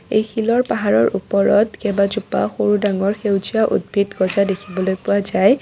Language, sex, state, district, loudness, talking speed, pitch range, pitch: Assamese, female, Assam, Kamrup Metropolitan, -18 LUFS, 140 wpm, 195-220 Hz, 200 Hz